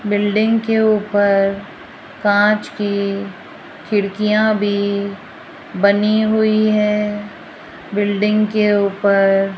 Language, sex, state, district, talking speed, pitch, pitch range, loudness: Hindi, female, Rajasthan, Jaipur, 90 wpm, 205 Hz, 200-215 Hz, -16 LUFS